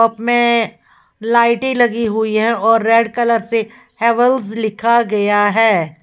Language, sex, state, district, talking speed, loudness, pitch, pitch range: Hindi, female, Uttar Pradesh, Lalitpur, 130 wpm, -15 LUFS, 230 Hz, 220-235 Hz